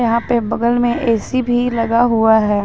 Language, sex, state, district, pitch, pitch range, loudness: Hindi, female, Jharkhand, Ranchi, 235 Hz, 225-240 Hz, -15 LUFS